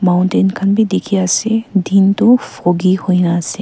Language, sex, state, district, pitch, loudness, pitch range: Nagamese, female, Nagaland, Kohima, 195 Hz, -13 LUFS, 180-205 Hz